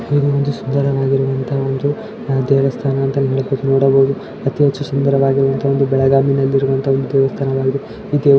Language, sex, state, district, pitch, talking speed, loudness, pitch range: Kannada, male, Karnataka, Belgaum, 135 Hz, 130 wpm, -16 LUFS, 135-140 Hz